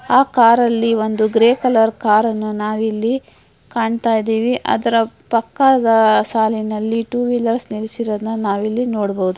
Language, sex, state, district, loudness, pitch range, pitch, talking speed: Kannada, female, Karnataka, Dharwad, -16 LUFS, 215-235 Hz, 225 Hz, 120 wpm